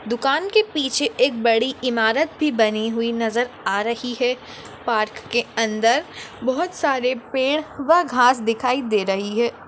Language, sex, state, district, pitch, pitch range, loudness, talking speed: Hindi, female, Maharashtra, Nagpur, 245 Hz, 230-275 Hz, -21 LUFS, 155 wpm